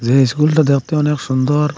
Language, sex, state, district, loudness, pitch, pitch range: Bengali, male, Assam, Hailakandi, -15 LUFS, 145 Hz, 135-150 Hz